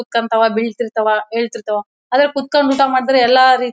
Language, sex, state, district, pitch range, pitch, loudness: Kannada, female, Karnataka, Bellary, 225-260 Hz, 240 Hz, -15 LUFS